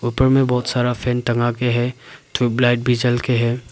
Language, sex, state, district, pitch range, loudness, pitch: Hindi, male, Arunachal Pradesh, Papum Pare, 120-125 Hz, -19 LUFS, 125 Hz